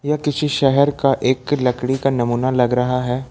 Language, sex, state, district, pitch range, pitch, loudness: Hindi, male, Jharkhand, Ranchi, 125-140 Hz, 130 Hz, -18 LUFS